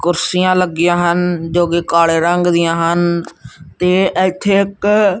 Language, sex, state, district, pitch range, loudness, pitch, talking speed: Punjabi, male, Punjab, Kapurthala, 170-185 Hz, -14 LUFS, 175 Hz, 140 wpm